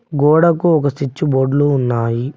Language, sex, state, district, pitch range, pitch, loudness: Telugu, male, Telangana, Mahabubabad, 130-155 Hz, 145 Hz, -15 LUFS